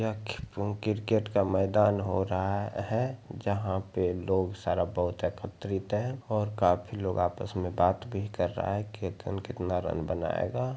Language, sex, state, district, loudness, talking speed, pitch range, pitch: Hindi, male, Bihar, Araria, -31 LUFS, 160 wpm, 95-110 Hz, 100 Hz